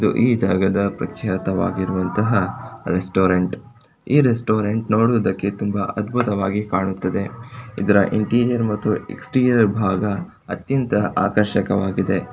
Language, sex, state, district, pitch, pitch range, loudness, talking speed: Kannada, male, Karnataka, Shimoga, 105 Hz, 95-115 Hz, -20 LUFS, 85 wpm